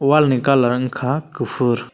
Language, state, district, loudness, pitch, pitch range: Kokborok, Tripura, West Tripura, -18 LUFS, 130 Hz, 125-140 Hz